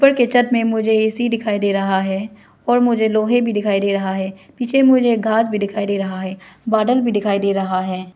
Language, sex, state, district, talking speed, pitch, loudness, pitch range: Hindi, female, Arunachal Pradesh, Lower Dibang Valley, 235 wpm, 215 Hz, -17 LUFS, 195-235 Hz